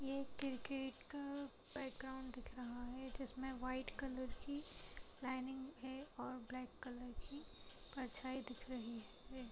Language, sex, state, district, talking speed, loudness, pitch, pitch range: Hindi, female, Bihar, Madhepura, 140 wpm, -49 LUFS, 260 Hz, 255-270 Hz